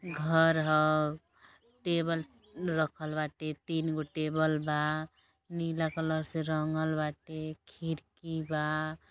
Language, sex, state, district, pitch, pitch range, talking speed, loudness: Bhojpuri, female, Uttar Pradesh, Gorakhpur, 155 Hz, 155-160 Hz, 105 wpm, -32 LUFS